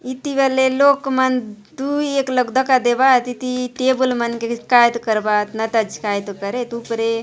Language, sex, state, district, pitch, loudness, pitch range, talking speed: Halbi, female, Chhattisgarh, Bastar, 245 Hz, -18 LUFS, 225-260 Hz, 135 wpm